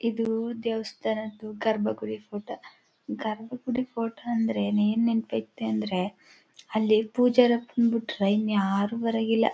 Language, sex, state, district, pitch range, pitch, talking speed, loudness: Kannada, female, Karnataka, Chamarajanagar, 210-230 Hz, 225 Hz, 115 wpm, -27 LUFS